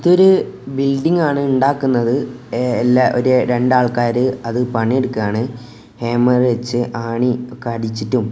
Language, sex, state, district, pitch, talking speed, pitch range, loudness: Malayalam, male, Kerala, Kozhikode, 125 Hz, 110 wpm, 120-130 Hz, -17 LUFS